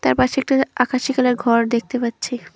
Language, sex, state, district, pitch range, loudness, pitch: Bengali, female, West Bengal, Cooch Behar, 235-260 Hz, -19 LUFS, 250 Hz